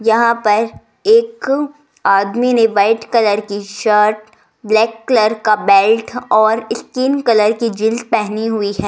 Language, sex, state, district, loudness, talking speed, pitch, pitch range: Hindi, female, Rajasthan, Jaipur, -14 LUFS, 140 wpm, 220 Hz, 210-235 Hz